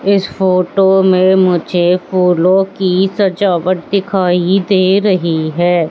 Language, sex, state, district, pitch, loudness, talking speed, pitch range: Hindi, female, Madhya Pradesh, Katni, 185 Hz, -12 LUFS, 110 wpm, 180-195 Hz